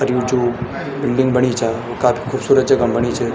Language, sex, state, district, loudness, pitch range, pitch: Garhwali, male, Uttarakhand, Tehri Garhwal, -17 LUFS, 120-130 Hz, 125 Hz